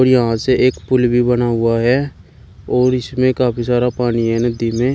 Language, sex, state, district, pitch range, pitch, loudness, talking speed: Hindi, male, Uttar Pradesh, Shamli, 115-130 Hz, 125 Hz, -16 LUFS, 195 wpm